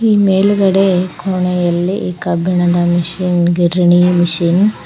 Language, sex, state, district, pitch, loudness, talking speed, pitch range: Kannada, female, Karnataka, Koppal, 180 Hz, -13 LUFS, 100 wpm, 175-190 Hz